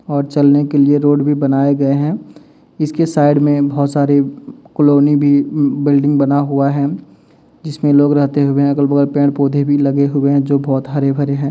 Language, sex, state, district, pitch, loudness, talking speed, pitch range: Hindi, male, Uttar Pradesh, Muzaffarnagar, 145 Hz, -14 LUFS, 200 wpm, 140-145 Hz